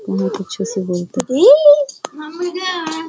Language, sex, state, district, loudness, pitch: Hindi, female, Bihar, Sitamarhi, -15 LUFS, 295 Hz